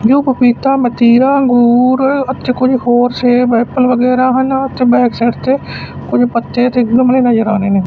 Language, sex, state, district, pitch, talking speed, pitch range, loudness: Punjabi, male, Punjab, Fazilka, 250 Hz, 170 wpm, 240-260 Hz, -11 LUFS